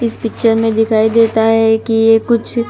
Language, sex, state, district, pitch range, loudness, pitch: Hindi, female, Gujarat, Gandhinagar, 225-230 Hz, -12 LUFS, 225 Hz